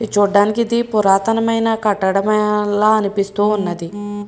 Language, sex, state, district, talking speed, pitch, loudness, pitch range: Telugu, female, Andhra Pradesh, Srikakulam, 100 wpm, 210 Hz, -16 LUFS, 205-220 Hz